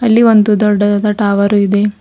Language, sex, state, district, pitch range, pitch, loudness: Kannada, female, Karnataka, Bidar, 205-210 Hz, 210 Hz, -11 LUFS